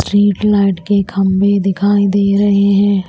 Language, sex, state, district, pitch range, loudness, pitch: Hindi, female, Maharashtra, Washim, 195-205 Hz, -13 LUFS, 200 Hz